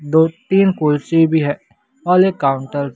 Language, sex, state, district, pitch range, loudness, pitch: Hindi, male, Bihar, West Champaran, 145-185 Hz, -16 LUFS, 160 Hz